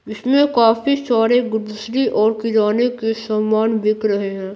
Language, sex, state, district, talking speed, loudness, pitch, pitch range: Hindi, female, Bihar, Patna, 145 wpm, -17 LUFS, 225 Hz, 215-240 Hz